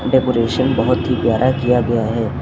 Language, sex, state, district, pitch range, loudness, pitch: Hindi, female, Uttar Pradesh, Lucknow, 115-130 Hz, -16 LUFS, 125 Hz